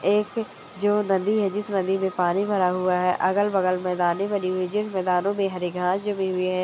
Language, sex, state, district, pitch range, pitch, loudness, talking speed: Hindi, female, Chhattisgarh, Korba, 185-205 Hz, 190 Hz, -24 LUFS, 235 wpm